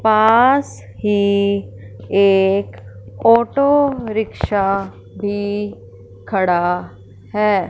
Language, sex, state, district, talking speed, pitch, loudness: Hindi, female, Punjab, Fazilka, 60 wpm, 195 Hz, -17 LUFS